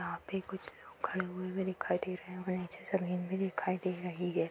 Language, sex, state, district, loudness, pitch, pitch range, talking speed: Hindi, female, Uttar Pradesh, Etah, -37 LUFS, 185 Hz, 180-190 Hz, 250 wpm